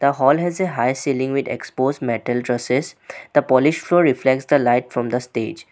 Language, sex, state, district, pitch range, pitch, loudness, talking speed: English, male, Assam, Sonitpur, 125-145 Hz, 130 Hz, -19 LUFS, 200 wpm